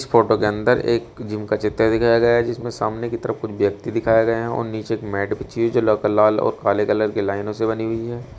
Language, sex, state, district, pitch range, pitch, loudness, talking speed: Hindi, male, Uttar Pradesh, Shamli, 105-115 Hz, 110 Hz, -20 LUFS, 260 wpm